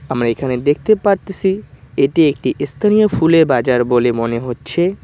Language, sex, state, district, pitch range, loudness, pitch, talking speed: Bengali, male, West Bengal, Cooch Behar, 125-190 Hz, -15 LUFS, 145 Hz, 145 wpm